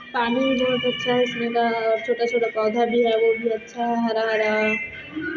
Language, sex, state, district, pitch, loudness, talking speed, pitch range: Hindi, female, Chhattisgarh, Korba, 235 Hz, -22 LUFS, 170 wpm, 225-245 Hz